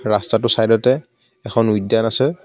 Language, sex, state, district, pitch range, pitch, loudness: Assamese, male, Assam, Kamrup Metropolitan, 110-125 Hz, 115 Hz, -17 LUFS